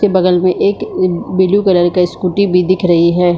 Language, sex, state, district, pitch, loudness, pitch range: Hindi, female, Bihar, Supaul, 180 Hz, -12 LUFS, 180-185 Hz